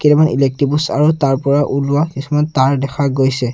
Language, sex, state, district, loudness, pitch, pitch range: Assamese, male, Assam, Sonitpur, -15 LUFS, 140 Hz, 135-150 Hz